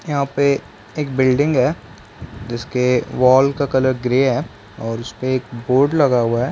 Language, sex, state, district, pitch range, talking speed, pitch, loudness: Hindi, male, Chhattisgarh, Bilaspur, 120-140 Hz, 175 wpm, 130 Hz, -18 LUFS